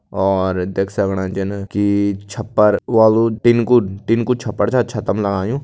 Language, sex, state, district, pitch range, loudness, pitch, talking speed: Kumaoni, male, Uttarakhand, Tehri Garhwal, 95-115 Hz, -17 LUFS, 105 Hz, 160 wpm